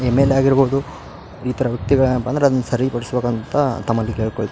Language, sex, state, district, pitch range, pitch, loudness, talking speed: Kannada, male, Karnataka, Raichur, 120-135 Hz, 125 Hz, -19 LUFS, 160 wpm